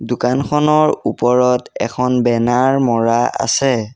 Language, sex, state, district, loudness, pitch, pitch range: Assamese, male, Assam, Sonitpur, -15 LUFS, 125 Hz, 120-135 Hz